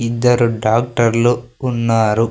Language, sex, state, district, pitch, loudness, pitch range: Telugu, male, Andhra Pradesh, Sri Satya Sai, 115 Hz, -16 LUFS, 115-120 Hz